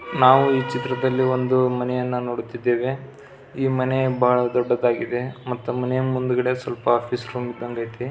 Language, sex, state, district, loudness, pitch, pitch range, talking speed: Kannada, male, Karnataka, Belgaum, -22 LUFS, 125 Hz, 120-130 Hz, 135 wpm